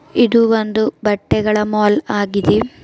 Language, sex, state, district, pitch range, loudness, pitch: Kannada, female, Karnataka, Bidar, 210-230 Hz, -15 LUFS, 215 Hz